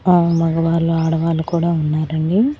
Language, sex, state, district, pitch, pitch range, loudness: Telugu, female, Andhra Pradesh, Annamaya, 165 Hz, 160-170 Hz, -17 LUFS